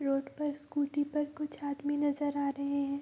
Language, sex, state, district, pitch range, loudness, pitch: Hindi, female, Bihar, Vaishali, 280-290 Hz, -34 LUFS, 285 Hz